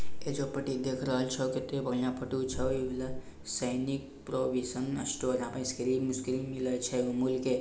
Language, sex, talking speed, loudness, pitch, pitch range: Bhojpuri, male, 190 wpm, -33 LUFS, 130 Hz, 125-130 Hz